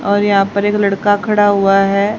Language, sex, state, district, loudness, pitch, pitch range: Hindi, female, Haryana, Rohtak, -13 LUFS, 200 Hz, 195-205 Hz